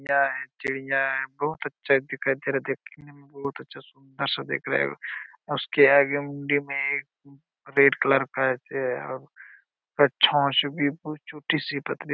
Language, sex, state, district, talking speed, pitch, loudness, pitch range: Hindi, male, Jharkhand, Sahebganj, 155 wpm, 140 Hz, -25 LUFS, 135-145 Hz